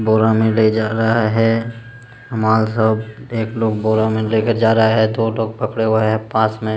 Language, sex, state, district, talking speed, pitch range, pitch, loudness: Hindi, male, Uttar Pradesh, Jalaun, 205 wpm, 110-115 Hz, 110 Hz, -16 LUFS